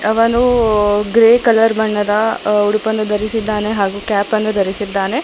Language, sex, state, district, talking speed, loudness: Kannada, male, Karnataka, Bangalore, 105 wpm, -14 LUFS